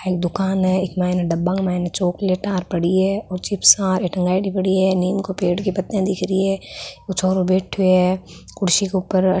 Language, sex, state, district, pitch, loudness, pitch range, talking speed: Marwari, female, Rajasthan, Nagaur, 185 Hz, -19 LUFS, 180-190 Hz, 185 wpm